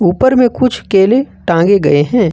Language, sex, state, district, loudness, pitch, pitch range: Hindi, male, Jharkhand, Ranchi, -11 LUFS, 200 Hz, 180-255 Hz